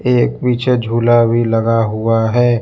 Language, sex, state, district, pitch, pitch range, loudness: Hindi, male, Uttar Pradesh, Lucknow, 115 Hz, 115-120 Hz, -14 LUFS